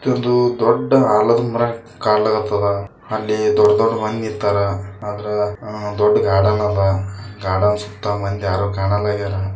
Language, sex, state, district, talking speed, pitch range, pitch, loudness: Kannada, male, Karnataka, Bijapur, 120 wpm, 100-110 Hz, 105 Hz, -18 LUFS